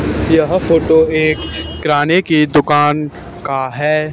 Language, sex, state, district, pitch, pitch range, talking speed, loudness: Hindi, male, Haryana, Charkhi Dadri, 150 Hz, 135-155 Hz, 115 wpm, -14 LUFS